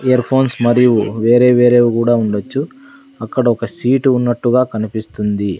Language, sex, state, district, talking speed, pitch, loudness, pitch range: Telugu, male, Andhra Pradesh, Sri Satya Sai, 130 wpm, 120 Hz, -14 LUFS, 110-130 Hz